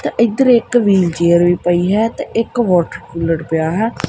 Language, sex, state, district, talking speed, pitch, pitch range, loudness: Punjabi, male, Punjab, Kapurthala, 190 wpm, 185 Hz, 170-230 Hz, -15 LUFS